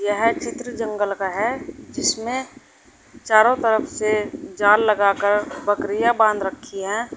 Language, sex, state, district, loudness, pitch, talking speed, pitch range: Hindi, female, Uttar Pradesh, Saharanpur, -20 LUFS, 215 Hz, 125 wpm, 205-240 Hz